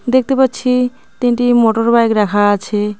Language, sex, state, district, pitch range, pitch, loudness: Bengali, female, West Bengal, Cooch Behar, 210-250 Hz, 235 Hz, -14 LUFS